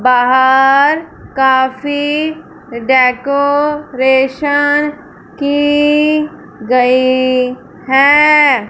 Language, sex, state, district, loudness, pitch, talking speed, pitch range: Hindi, female, Punjab, Fazilka, -11 LUFS, 280 Hz, 40 wpm, 255-295 Hz